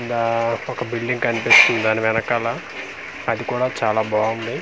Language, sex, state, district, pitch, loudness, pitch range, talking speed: Telugu, male, Andhra Pradesh, Manyam, 115 Hz, -19 LUFS, 110-120 Hz, 130 wpm